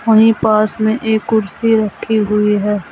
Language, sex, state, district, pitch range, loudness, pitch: Hindi, female, Uttar Pradesh, Saharanpur, 210-225 Hz, -14 LUFS, 215 Hz